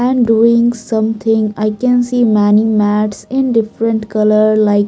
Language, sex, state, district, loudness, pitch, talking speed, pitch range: English, female, Maharashtra, Mumbai Suburban, -13 LUFS, 220 Hz, 160 wpm, 215-235 Hz